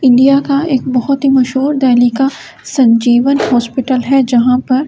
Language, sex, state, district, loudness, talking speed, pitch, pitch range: Hindi, female, Delhi, New Delhi, -11 LUFS, 170 wpm, 260 Hz, 245-275 Hz